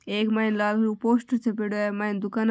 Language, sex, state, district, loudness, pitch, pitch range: Marwari, female, Rajasthan, Nagaur, -25 LUFS, 215 Hz, 210-225 Hz